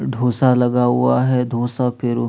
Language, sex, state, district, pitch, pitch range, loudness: Hindi, male, Chhattisgarh, Sukma, 120 Hz, 120-125 Hz, -17 LUFS